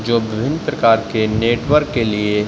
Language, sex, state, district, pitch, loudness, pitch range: Hindi, male, Uttar Pradesh, Budaun, 115 Hz, -17 LUFS, 110-130 Hz